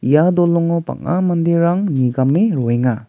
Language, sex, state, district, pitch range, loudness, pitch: Garo, male, Meghalaya, West Garo Hills, 130-175 Hz, -16 LUFS, 170 Hz